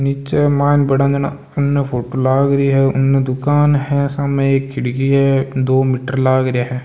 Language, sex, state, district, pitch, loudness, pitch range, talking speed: Marwari, male, Rajasthan, Nagaur, 135 Hz, -15 LUFS, 130-140 Hz, 185 wpm